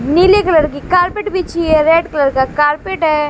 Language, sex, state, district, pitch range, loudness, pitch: Hindi, female, Bihar, West Champaran, 295-360 Hz, -13 LUFS, 320 Hz